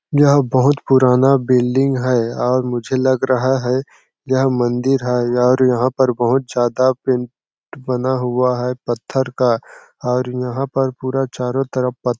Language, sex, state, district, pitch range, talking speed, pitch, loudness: Hindi, male, Chhattisgarh, Sarguja, 125-130 Hz, 150 wpm, 130 Hz, -17 LUFS